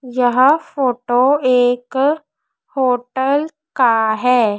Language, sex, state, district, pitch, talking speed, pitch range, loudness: Hindi, female, Madhya Pradesh, Dhar, 255 Hz, 80 wpm, 245-285 Hz, -16 LUFS